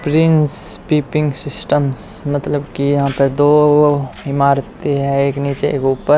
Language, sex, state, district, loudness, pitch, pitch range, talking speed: Hindi, male, Haryana, Rohtak, -15 LUFS, 145 Hz, 140-150 Hz, 135 wpm